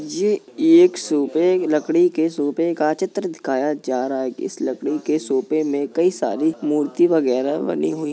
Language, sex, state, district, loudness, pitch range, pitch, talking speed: Hindi, female, Uttar Pradesh, Jalaun, -20 LUFS, 145-185 Hz, 160 Hz, 170 wpm